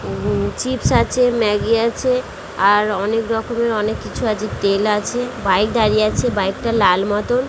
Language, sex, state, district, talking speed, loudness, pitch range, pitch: Bengali, female, West Bengal, Dakshin Dinajpur, 170 wpm, -18 LUFS, 205-235 Hz, 215 Hz